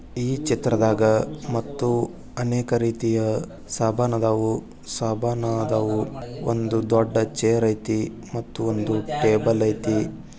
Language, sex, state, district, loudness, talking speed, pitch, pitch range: Kannada, male, Karnataka, Bijapur, -23 LUFS, 80 wpm, 115 Hz, 110-120 Hz